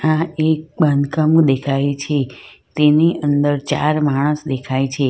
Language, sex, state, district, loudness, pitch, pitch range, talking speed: Gujarati, female, Gujarat, Valsad, -17 LUFS, 145 Hz, 140-155 Hz, 130 wpm